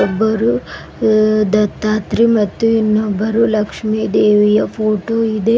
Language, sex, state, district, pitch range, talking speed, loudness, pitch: Kannada, female, Karnataka, Bidar, 210-220 Hz, 75 wpm, -15 LUFS, 215 Hz